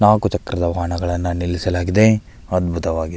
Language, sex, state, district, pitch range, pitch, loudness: Kannada, male, Karnataka, Belgaum, 85-100 Hz, 90 Hz, -19 LUFS